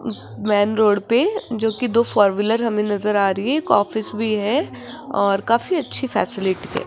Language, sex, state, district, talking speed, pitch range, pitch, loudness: Hindi, female, Rajasthan, Jaipur, 190 wpm, 205-235 Hz, 215 Hz, -19 LUFS